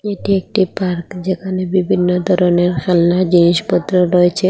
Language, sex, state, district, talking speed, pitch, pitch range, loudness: Bengali, female, Assam, Hailakandi, 120 wpm, 180 Hz, 175-185 Hz, -15 LUFS